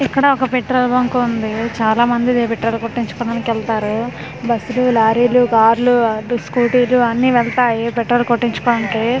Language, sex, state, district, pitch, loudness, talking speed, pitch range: Telugu, female, Andhra Pradesh, Manyam, 235 Hz, -16 LUFS, 135 wpm, 230-245 Hz